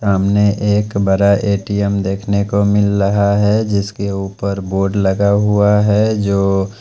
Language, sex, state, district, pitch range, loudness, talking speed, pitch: Hindi, male, Punjab, Pathankot, 100-105 Hz, -15 LUFS, 140 wpm, 100 Hz